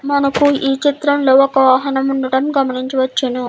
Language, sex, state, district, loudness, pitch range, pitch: Telugu, female, Andhra Pradesh, Guntur, -14 LUFS, 260-280 Hz, 270 Hz